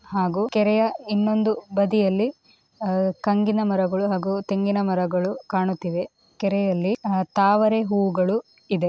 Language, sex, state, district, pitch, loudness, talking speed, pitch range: Kannada, female, Karnataka, Dakshina Kannada, 200 Hz, -23 LUFS, 100 wpm, 190-210 Hz